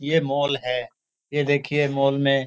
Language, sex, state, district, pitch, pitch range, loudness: Hindi, male, Bihar, Gopalganj, 140 Hz, 135-145 Hz, -23 LUFS